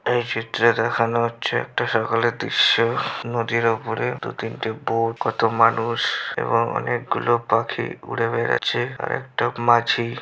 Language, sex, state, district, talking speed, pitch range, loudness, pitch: Bengali, male, West Bengal, Malda, 135 wpm, 115-120 Hz, -21 LUFS, 115 Hz